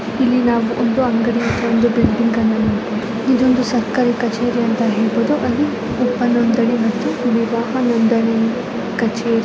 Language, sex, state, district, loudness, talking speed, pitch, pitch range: Kannada, female, Karnataka, Chamarajanagar, -17 LUFS, 95 wpm, 235 Hz, 225-245 Hz